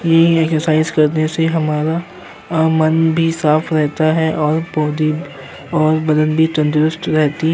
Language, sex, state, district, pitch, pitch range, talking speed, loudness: Hindi, male, Uttar Pradesh, Jyotiba Phule Nagar, 155 Hz, 155-160 Hz, 160 wpm, -15 LUFS